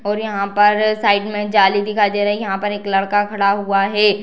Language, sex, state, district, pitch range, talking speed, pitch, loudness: Hindi, female, Bihar, Darbhanga, 200-210 Hz, 255 wpm, 205 Hz, -16 LUFS